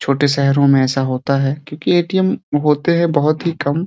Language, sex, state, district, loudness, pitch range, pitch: Hindi, male, Uttar Pradesh, Deoria, -16 LUFS, 140-170 Hz, 145 Hz